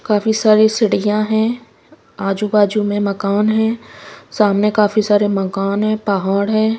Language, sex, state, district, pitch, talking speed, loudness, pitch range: Hindi, female, Himachal Pradesh, Shimla, 210 Hz, 140 wpm, -16 LUFS, 200-215 Hz